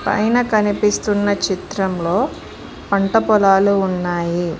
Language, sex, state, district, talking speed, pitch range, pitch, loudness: Telugu, female, Telangana, Mahabubabad, 80 wpm, 190-210 Hz, 200 Hz, -17 LUFS